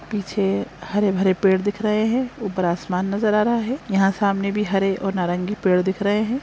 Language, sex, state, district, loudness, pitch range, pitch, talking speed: Hindi, female, Chhattisgarh, Sukma, -21 LUFS, 190-210 Hz, 200 Hz, 225 wpm